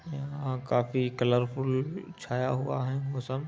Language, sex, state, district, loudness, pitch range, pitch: Hindi, male, Uttar Pradesh, Budaun, -30 LUFS, 125-140 Hz, 130 Hz